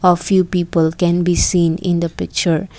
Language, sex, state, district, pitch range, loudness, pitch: English, female, Assam, Kamrup Metropolitan, 170-180 Hz, -16 LUFS, 175 Hz